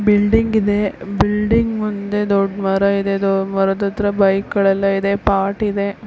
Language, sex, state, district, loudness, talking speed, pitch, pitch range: Kannada, female, Karnataka, Belgaum, -17 LUFS, 150 wpm, 200 Hz, 195-210 Hz